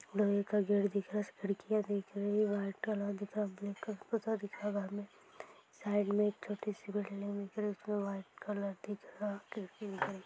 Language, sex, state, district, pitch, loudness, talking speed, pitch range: Hindi, female, Maharashtra, Nagpur, 205 Hz, -38 LUFS, 170 wpm, 200-210 Hz